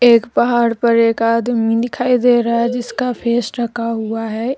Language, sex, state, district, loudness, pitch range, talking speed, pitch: Hindi, female, Jharkhand, Deoghar, -16 LUFS, 230-245 Hz, 185 wpm, 235 Hz